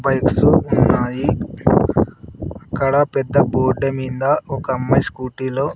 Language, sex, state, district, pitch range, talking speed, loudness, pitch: Telugu, male, Andhra Pradesh, Sri Satya Sai, 130-135 Hz, 95 wpm, -18 LUFS, 135 Hz